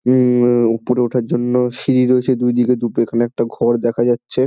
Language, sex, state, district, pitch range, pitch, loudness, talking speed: Bengali, male, West Bengal, Dakshin Dinajpur, 120-125 Hz, 120 Hz, -16 LUFS, 200 wpm